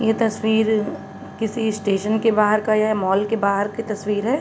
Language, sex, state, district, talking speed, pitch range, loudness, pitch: Hindi, female, Uttar Pradesh, Jalaun, 190 wpm, 210-220 Hz, -20 LUFS, 215 Hz